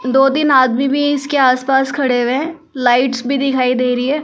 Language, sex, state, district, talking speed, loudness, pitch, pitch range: Hindi, female, Delhi, New Delhi, 210 wpm, -14 LUFS, 270 Hz, 255-280 Hz